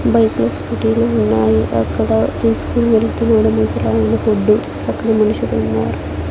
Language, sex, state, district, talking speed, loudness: Telugu, female, Andhra Pradesh, Sri Satya Sai, 105 wpm, -15 LUFS